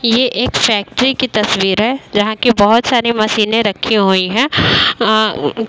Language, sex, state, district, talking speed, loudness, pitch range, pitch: Hindi, female, Uttar Pradesh, Varanasi, 170 wpm, -13 LUFS, 210-240 Hz, 220 Hz